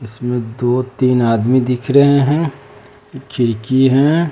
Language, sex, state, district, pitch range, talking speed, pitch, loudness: Hindi, male, Bihar, West Champaran, 120-140 Hz, 125 wpm, 130 Hz, -15 LUFS